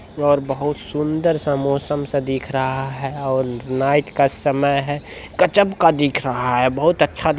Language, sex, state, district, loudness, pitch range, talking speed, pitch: Maithili, male, Bihar, Supaul, -19 LUFS, 135-150 Hz, 185 wpm, 140 Hz